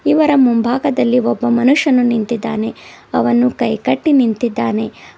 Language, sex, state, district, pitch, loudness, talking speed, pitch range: Kannada, female, Karnataka, Bidar, 240 Hz, -15 LUFS, 95 wpm, 230-270 Hz